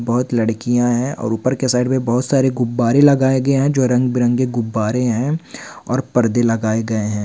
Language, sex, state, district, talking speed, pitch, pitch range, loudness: Hindi, male, Bihar, Saran, 180 wpm, 125 Hz, 115-130 Hz, -17 LUFS